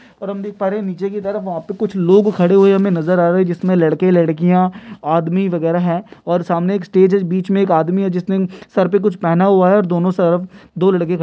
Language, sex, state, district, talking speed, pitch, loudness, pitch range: Hindi, male, Bihar, Kishanganj, 255 wpm, 185 Hz, -15 LUFS, 175-200 Hz